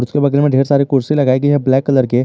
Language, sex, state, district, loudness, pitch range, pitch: Hindi, male, Jharkhand, Garhwa, -14 LUFS, 130-145 Hz, 140 Hz